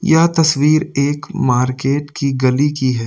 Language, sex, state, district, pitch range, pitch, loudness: Hindi, male, Delhi, New Delhi, 130-155 Hz, 145 Hz, -15 LUFS